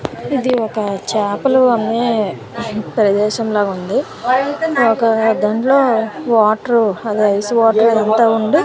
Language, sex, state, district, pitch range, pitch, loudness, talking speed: Telugu, female, Andhra Pradesh, Manyam, 215-240 Hz, 225 Hz, -15 LUFS, 95 wpm